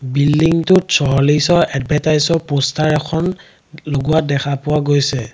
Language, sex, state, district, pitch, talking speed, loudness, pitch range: Assamese, male, Assam, Sonitpur, 150 Hz, 100 wpm, -15 LUFS, 140-160 Hz